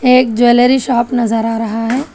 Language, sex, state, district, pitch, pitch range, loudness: Hindi, female, Telangana, Hyderabad, 240 Hz, 230-250 Hz, -13 LUFS